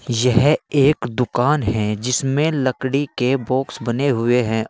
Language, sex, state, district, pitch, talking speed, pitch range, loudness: Hindi, male, Uttar Pradesh, Saharanpur, 125 Hz, 140 wpm, 120-140 Hz, -19 LUFS